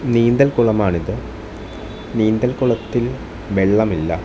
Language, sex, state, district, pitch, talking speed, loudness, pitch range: Malayalam, male, Kerala, Thiruvananthapuram, 110 Hz, 55 wpm, -18 LUFS, 95-120 Hz